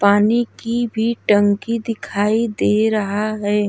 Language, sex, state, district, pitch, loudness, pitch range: Bhojpuri, female, Uttar Pradesh, Gorakhpur, 215 Hz, -18 LUFS, 205-230 Hz